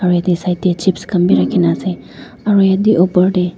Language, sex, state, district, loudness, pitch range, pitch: Nagamese, female, Nagaland, Dimapur, -14 LUFS, 155-190 Hz, 180 Hz